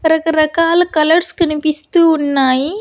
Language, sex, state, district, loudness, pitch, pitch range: Telugu, female, Andhra Pradesh, Annamaya, -13 LUFS, 320 Hz, 305-335 Hz